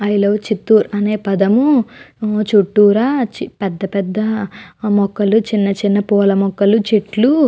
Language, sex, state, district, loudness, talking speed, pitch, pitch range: Telugu, female, Andhra Pradesh, Chittoor, -15 LUFS, 130 wpm, 210 Hz, 200-220 Hz